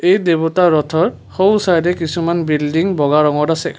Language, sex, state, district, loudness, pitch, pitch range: Assamese, male, Assam, Kamrup Metropolitan, -15 LUFS, 165 Hz, 155-180 Hz